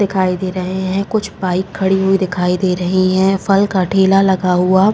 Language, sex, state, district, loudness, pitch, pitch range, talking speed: Hindi, female, Uttar Pradesh, Jalaun, -15 LUFS, 190 Hz, 185-195 Hz, 220 wpm